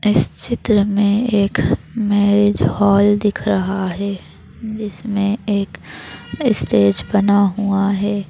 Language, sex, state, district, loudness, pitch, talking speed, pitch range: Hindi, female, Madhya Pradesh, Bhopal, -17 LUFS, 205 Hz, 110 wpm, 200-210 Hz